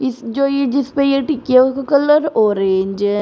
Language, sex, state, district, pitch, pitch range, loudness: Hindi, female, Uttar Pradesh, Shamli, 265 Hz, 220-275 Hz, -15 LUFS